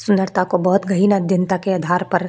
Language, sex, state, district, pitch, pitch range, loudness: Hindi, female, Maharashtra, Chandrapur, 185 Hz, 180-195 Hz, -17 LUFS